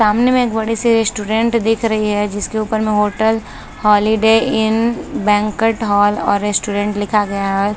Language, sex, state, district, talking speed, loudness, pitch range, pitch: Hindi, female, Bihar, Saharsa, 170 wpm, -15 LUFS, 205-225 Hz, 215 Hz